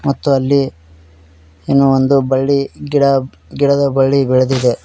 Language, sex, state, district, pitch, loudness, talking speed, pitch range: Kannada, male, Karnataka, Koppal, 135 Hz, -14 LUFS, 110 wpm, 125-140 Hz